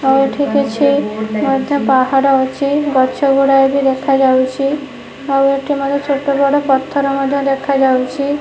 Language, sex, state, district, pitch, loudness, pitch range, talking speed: Odia, female, Odisha, Nuapada, 275 Hz, -14 LUFS, 265-280 Hz, 130 wpm